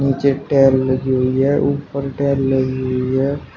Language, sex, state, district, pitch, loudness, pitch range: Hindi, male, Uttar Pradesh, Shamli, 135 Hz, -17 LUFS, 130-140 Hz